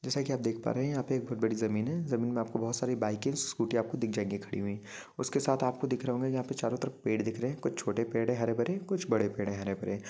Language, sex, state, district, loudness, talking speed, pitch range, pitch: Hindi, male, Jharkhand, Jamtara, -33 LUFS, 315 wpm, 110-130 Hz, 120 Hz